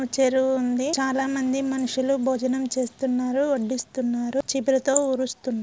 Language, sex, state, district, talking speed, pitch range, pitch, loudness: Telugu, male, Andhra Pradesh, Srikakulam, 95 wpm, 255-270 Hz, 260 Hz, -24 LUFS